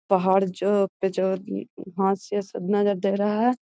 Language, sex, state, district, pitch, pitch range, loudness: Magahi, female, Bihar, Gaya, 195 Hz, 190-205 Hz, -24 LUFS